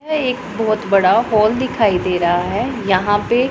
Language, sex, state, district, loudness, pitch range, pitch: Hindi, male, Punjab, Pathankot, -16 LUFS, 195-250 Hz, 215 Hz